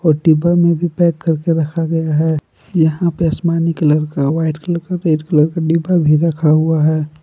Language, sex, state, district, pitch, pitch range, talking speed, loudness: Hindi, male, Jharkhand, Palamu, 160 Hz, 155-170 Hz, 210 wpm, -15 LUFS